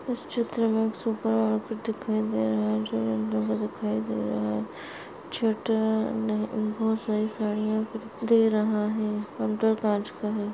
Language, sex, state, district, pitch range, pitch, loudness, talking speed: Hindi, female, Maharashtra, Solapur, 195-220 Hz, 215 Hz, -27 LUFS, 125 wpm